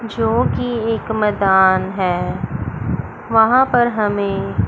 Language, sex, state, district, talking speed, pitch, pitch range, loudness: Hindi, female, Chandigarh, Chandigarh, 90 wpm, 205 Hz, 180-225 Hz, -17 LUFS